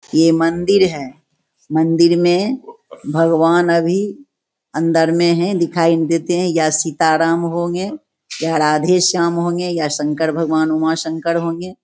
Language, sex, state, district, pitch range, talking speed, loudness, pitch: Hindi, female, Bihar, Begusarai, 160-175 Hz, 140 wpm, -16 LUFS, 165 Hz